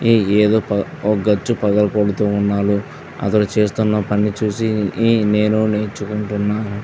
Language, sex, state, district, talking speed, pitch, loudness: Telugu, male, Andhra Pradesh, Visakhapatnam, 115 wpm, 105 Hz, -17 LUFS